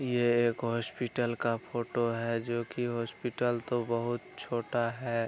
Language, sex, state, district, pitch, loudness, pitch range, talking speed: Hindi, male, Bihar, Araria, 120 Hz, -32 LUFS, 115-120 Hz, 145 wpm